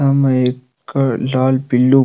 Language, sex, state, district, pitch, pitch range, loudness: Rajasthani, male, Rajasthan, Nagaur, 130 Hz, 125-135 Hz, -16 LUFS